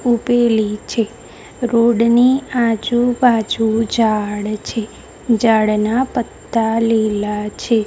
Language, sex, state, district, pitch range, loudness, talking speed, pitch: Gujarati, female, Gujarat, Gandhinagar, 215-240 Hz, -16 LUFS, 85 wpm, 225 Hz